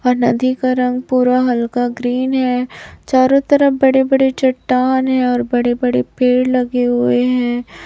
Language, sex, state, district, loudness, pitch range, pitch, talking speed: Hindi, male, Chhattisgarh, Raipur, -15 LUFS, 245-260 Hz, 250 Hz, 145 wpm